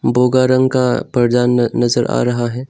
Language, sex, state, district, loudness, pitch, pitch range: Hindi, male, Arunachal Pradesh, Longding, -15 LUFS, 125 Hz, 120-130 Hz